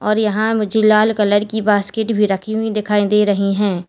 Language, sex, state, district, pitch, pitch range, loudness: Hindi, female, Uttar Pradesh, Lalitpur, 210 Hz, 205-220 Hz, -16 LUFS